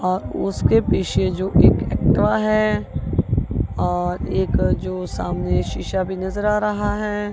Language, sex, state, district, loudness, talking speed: Hindi, female, Punjab, Kapurthala, -20 LUFS, 140 wpm